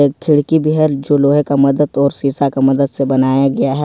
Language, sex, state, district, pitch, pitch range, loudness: Hindi, male, Jharkhand, Ranchi, 140 Hz, 135-145 Hz, -14 LUFS